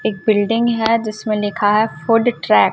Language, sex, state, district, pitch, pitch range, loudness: Hindi, female, Chhattisgarh, Raipur, 215 Hz, 210-230 Hz, -16 LUFS